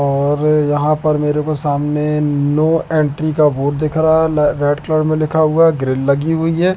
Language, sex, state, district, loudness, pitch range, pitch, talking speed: Hindi, male, Madhya Pradesh, Katni, -15 LUFS, 145-155 Hz, 150 Hz, 195 wpm